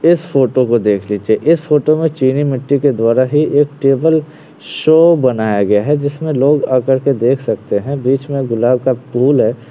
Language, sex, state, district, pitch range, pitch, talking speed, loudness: Hindi, male, Uttar Pradesh, Varanasi, 125-150 Hz, 135 Hz, 200 wpm, -13 LUFS